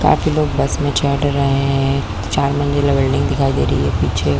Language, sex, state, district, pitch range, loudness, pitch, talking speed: Hindi, female, Chhattisgarh, Korba, 125-145 Hz, -17 LUFS, 140 Hz, 220 wpm